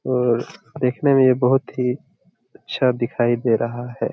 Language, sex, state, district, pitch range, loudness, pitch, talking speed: Hindi, male, Jharkhand, Jamtara, 120-135 Hz, -20 LUFS, 125 Hz, 160 wpm